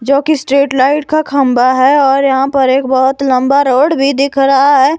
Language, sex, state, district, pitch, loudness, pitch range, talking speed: Hindi, female, Himachal Pradesh, Shimla, 275 Hz, -11 LUFS, 265-280 Hz, 205 wpm